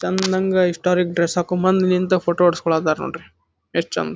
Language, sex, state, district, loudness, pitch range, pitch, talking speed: Kannada, male, Karnataka, Dharwad, -19 LUFS, 170-185 Hz, 180 Hz, 160 wpm